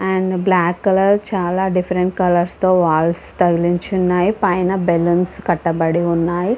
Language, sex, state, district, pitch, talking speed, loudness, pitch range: Telugu, female, Andhra Pradesh, Visakhapatnam, 180 Hz, 130 wpm, -17 LUFS, 175-190 Hz